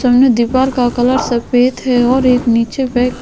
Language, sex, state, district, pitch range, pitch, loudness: Hindi, female, Goa, North and South Goa, 245-255 Hz, 250 Hz, -13 LUFS